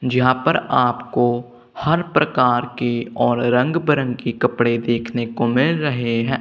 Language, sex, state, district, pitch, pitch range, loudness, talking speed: Hindi, male, Punjab, Kapurthala, 125 Hz, 120-130 Hz, -19 LUFS, 150 wpm